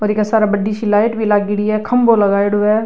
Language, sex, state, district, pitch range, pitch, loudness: Rajasthani, female, Rajasthan, Nagaur, 205-220 Hz, 210 Hz, -15 LUFS